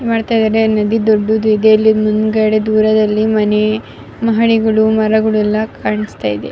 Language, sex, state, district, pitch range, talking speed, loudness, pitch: Kannada, female, Karnataka, Raichur, 215-220 Hz, 75 wpm, -13 LUFS, 215 Hz